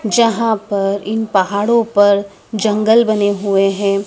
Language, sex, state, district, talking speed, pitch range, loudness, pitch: Hindi, female, Madhya Pradesh, Dhar, 135 wpm, 200-220 Hz, -15 LUFS, 205 Hz